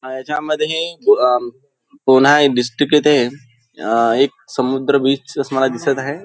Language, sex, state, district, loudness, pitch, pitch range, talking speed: Marathi, male, Maharashtra, Nagpur, -16 LUFS, 140 Hz, 130-150 Hz, 155 wpm